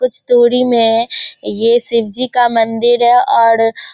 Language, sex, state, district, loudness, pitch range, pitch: Hindi, female, Bihar, Darbhanga, -12 LUFS, 225-245 Hz, 235 Hz